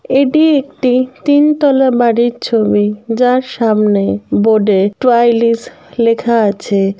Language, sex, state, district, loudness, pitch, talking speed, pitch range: Bengali, female, West Bengal, Kolkata, -12 LUFS, 235 Hz, 110 wpm, 210-255 Hz